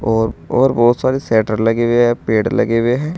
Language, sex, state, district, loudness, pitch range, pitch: Hindi, male, Uttar Pradesh, Saharanpur, -15 LUFS, 110-125 Hz, 120 Hz